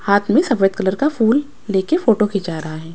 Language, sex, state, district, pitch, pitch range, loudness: Hindi, female, Punjab, Kapurthala, 205 Hz, 190-250 Hz, -17 LUFS